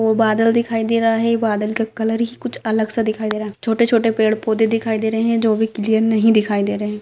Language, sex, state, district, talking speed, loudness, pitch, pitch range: Hindi, female, Jharkhand, Sahebganj, 290 wpm, -18 LUFS, 220 Hz, 215-225 Hz